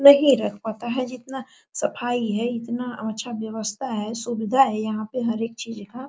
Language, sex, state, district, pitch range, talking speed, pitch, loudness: Hindi, female, Bihar, Araria, 220-255 Hz, 195 wpm, 235 Hz, -24 LUFS